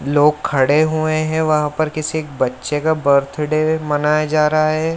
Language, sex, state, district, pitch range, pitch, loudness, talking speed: Hindi, male, Bihar, Lakhisarai, 150-155 Hz, 155 Hz, -17 LUFS, 180 wpm